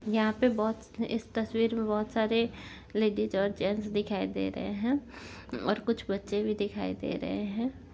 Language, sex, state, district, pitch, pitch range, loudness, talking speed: Hindi, female, Uttar Pradesh, Jyotiba Phule Nagar, 215 Hz, 205-230 Hz, -31 LUFS, 175 wpm